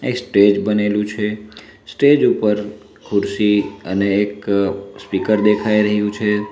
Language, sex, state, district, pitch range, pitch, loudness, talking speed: Gujarati, male, Gujarat, Valsad, 100-105 Hz, 105 Hz, -17 LUFS, 120 wpm